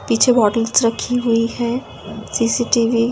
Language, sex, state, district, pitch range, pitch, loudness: Hindi, female, Delhi, New Delhi, 230-240 Hz, 230 Hz, -17 LUFS